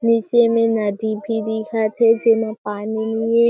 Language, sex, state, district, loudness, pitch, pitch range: Chhattisgarhi, female, Chhattisgarh, Jashpur, -19 LUFS, 225 Hz, 215-230 Hz